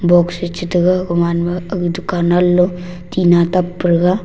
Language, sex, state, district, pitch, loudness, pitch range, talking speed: Wancho, male, Arunachal Pradesh, Longding, 175 Hz, -15 LUFS, 175-180 Hz, 185 wpm